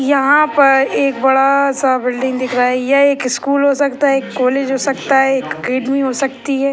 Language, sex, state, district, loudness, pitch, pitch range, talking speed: Hindi, male, Bihar, Purnia, -14 LUFS, 270 Hz, 260-275 Hz, 225 wpm